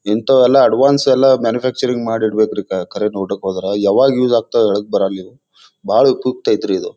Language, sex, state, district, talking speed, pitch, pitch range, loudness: Kannada, male, Karnataka, Bijapur, 170 wpm, 120 Hz, 100-135 Hz, -15 LUFS